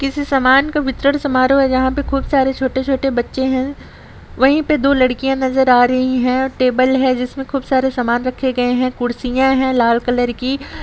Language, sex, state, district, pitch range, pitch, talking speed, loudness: Hindi, female, Jharkhand, Sahebganj, 255-270 Hz, 260 Hz, 200 wpm, -16 LUFS